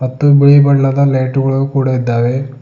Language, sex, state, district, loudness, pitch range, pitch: Kannada, male, Karnataka, Bidar, -12 LUFS, 130-140 Hz, 135 Hz